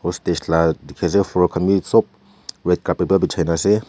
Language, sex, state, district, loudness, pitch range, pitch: Nagamese, male, Nagaland, Kohima, -19 LUFS, 85-95 Hz, 90 Hz